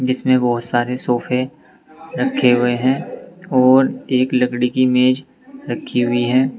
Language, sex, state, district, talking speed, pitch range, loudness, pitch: Hindi, male, Uttar Pradesh, Saharanpur, 135 wpm, 125-130 Hz, -17 LUFS, 130 Hz